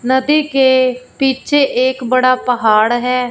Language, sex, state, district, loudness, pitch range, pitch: Hindi, female, Punjab, Fazilka, -13 LUFS, 250-265 Hz, 255 Hz